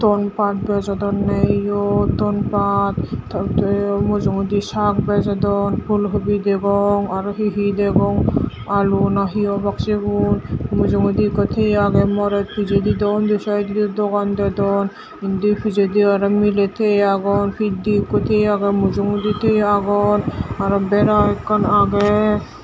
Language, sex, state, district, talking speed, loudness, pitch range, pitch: Chakma, female, Tripura, Dhalai, 125 wpm, -18 LUFS, 200-205 Hz, 200 Hz